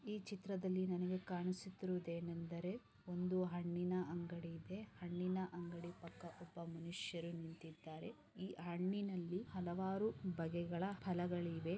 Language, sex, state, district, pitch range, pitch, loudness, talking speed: Kannada, female, Karnataka, Chamarajanagar, 170-185 Hz, 180 Hz, -45 LUFS, 95 wpm